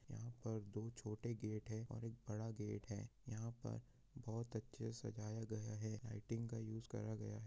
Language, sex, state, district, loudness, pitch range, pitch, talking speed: Hindi, male, Jharkhand, Jamtara, -49 LUFS, 110-115 Hz, 110 Hz, 200 wpm